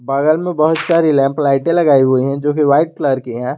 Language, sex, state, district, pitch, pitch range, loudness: Hindi, male, Jharkhand, Garhwa, 145 Hz, 135-160 Hz, -14 LUFS